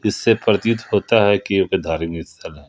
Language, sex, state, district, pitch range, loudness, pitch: Hindi, male, Jharkhand, Ranchi, 85-105 Hz, -18 LUFS, 100 Hz